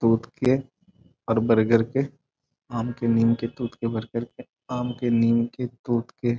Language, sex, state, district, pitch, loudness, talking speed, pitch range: Hindi, male, Bihar, Sitamarhi, 120 Hz, -24 LUFS, 190 wpm, 115-130 Hz